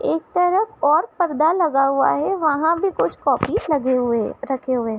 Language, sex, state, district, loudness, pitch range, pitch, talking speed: Hindi, female, Uttar Pradesh, Hamirpur, -19 LUFS, 270-355 Hz, 310 Hz, 190 wpm